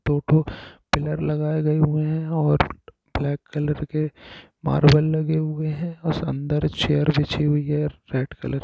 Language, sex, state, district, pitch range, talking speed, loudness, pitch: Hindi, male, Jharkhand, Sahebganj, 145-155 Hz, 160 wpm, -23 LUFS, 150 Hz